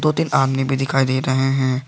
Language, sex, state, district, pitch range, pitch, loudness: Hindi, male, Jharkhand, Garhwa, 130-135 Hz, 135 Hz, -18 LUFS